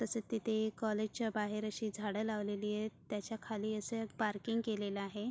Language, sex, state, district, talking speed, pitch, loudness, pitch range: Marathi, female, Maharashtra, Sindhudurg, 180 wpm, 215 Hz, -39 LUFS, 210-225 Hz